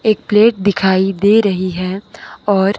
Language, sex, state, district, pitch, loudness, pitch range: Hindi, female, Himachal Pradesh, Shimla, 200 Hz, -14 LUFS, 190-210 Hz